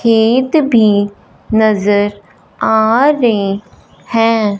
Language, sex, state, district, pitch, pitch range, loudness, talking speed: Hindi, female, Punjab, Fazilka, 220 Hz, 205-235 Hz, -12 LUFS, 80 wpm